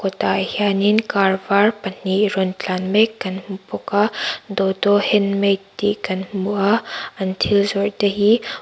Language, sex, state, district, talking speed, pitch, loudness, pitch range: Mizo, female, Mizoram, Aizawl, 175 wpm, 200 Hz, -19 LUFS, 190-205 Hz